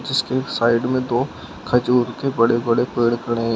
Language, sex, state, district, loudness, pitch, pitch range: Hindi, male, Uttar Pradesh, Shamli, -20 LUFS, 120 Hz, 115-125 Hz